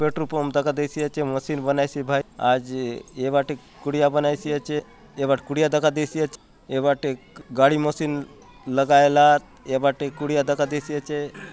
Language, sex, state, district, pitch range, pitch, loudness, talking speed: Halbi, male, Chhattisgarh, Bastar, 140-150 Hz, 145 Hz, -23 LUFS, 160 wpm